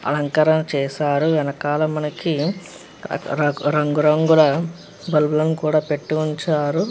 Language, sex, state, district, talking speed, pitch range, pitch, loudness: Telugu, female, Andhra Pradesh, Krishna, 85 wpm, 145-155 Hz, 150 Hz, -19 LUFS